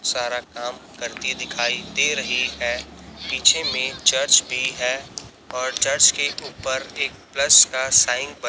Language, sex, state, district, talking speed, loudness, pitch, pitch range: Hindi, male, Chhattisgarh, Raipur, 150 wpm, -19 LUFS, 125 Hz, 125-130 Hz